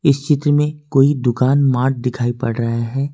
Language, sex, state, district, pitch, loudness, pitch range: Hindi, male, Jharkhand, Ranchi, 135 Hz, -17 LUFS, 120-145 Hz